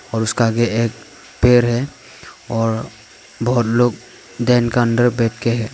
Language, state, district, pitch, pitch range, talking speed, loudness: Hindi, Arunachal Pradesh, Papum Pare, 120 Hz, 115-120 Hz, 155 wpm, -17 LUFS